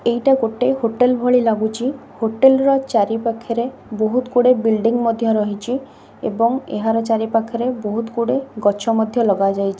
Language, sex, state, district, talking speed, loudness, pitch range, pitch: Odia, female, Odisha, Khordha, 140 wpm, -18 LUFS, 220-250 Hz, 230 Hz